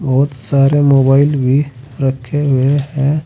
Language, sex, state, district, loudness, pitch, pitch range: Hindi, male, Uttar Pradesh, Saharanpur, -13 LUFS, 140 Hz, 135-145 Hz